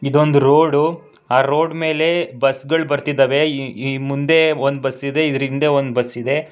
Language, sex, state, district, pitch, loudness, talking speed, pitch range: Kannada, male, Karnataka, Bangalore, 140 Hz, -17 LUFS, 165 wpm, 135-155 Hz